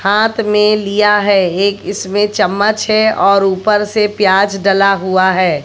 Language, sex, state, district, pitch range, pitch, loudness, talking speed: Hindi, female, Bihar, West Champaran, 195-210 Hz, 200 Hz, -12 LUFS, 160 wpm